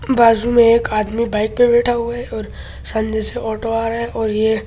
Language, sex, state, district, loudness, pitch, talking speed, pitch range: Hindi, male, Delhi, New Delhi, -17 LUFS, 225 Hz, 245 wpm, 220-235 Hz